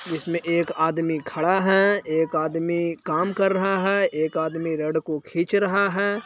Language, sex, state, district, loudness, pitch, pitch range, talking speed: Hindi, male, Bihar, Jahanabad, -23 LUFS, 170 Hz, 160-195 Hz, 175 wpm